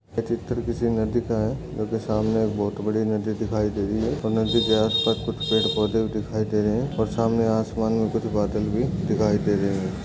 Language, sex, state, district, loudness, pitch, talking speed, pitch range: Hindi, male, Maharashtra, Aurangabad, -24 LUFS, 110 Hz, 195 wpm, 105-115 Hz